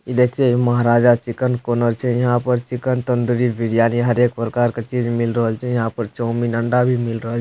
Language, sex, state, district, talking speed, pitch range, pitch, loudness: Maithili, male, Bihar, Supaul, 210 wpm, 115-125 Hz, 120 Hz, -18 LUFS